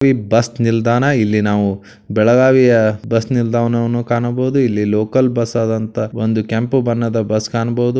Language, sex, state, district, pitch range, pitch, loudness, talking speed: Kannada, male, Karnataka, Belgaum, 110-120 Hz, 115 Hz, -15 LUFS, 140 wpm